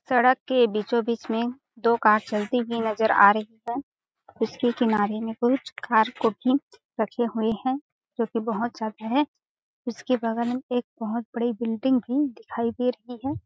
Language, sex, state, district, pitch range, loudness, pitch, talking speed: Hindi, female, Chhattisgarh, Balrampur, 225-250 Hz, -25 LUFS, 235 Hz, 180 wpm